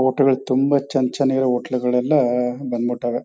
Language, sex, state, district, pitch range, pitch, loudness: Kannada, male, Karnataka, Chamarajanagar, 125-135 Hz, 130 Hz, -20 LUFS